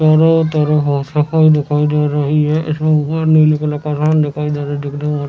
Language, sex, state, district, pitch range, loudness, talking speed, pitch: Hindi, male, Chhattisgarh, Raigarh, 150-155 Hz, -14 LUFS, 205 wpm, 150 Hz